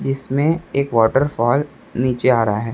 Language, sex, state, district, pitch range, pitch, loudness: Hindi, male, Chhattisgarh, Raipur, 115-140 Hz, 130 Hz, -18 LUFS